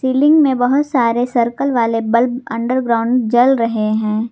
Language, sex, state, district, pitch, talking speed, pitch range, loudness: Hindi, female, Jharkhand, Garhwa, 240 Hz, 155 wpm, 230-260 Hz, -15 LUFS